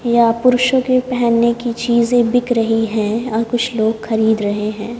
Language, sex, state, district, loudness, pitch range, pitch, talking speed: Hindi, female, Haryana, Jhajjar, -16 LUFS, 220-245 Hz, 235 Hz, 180 wpm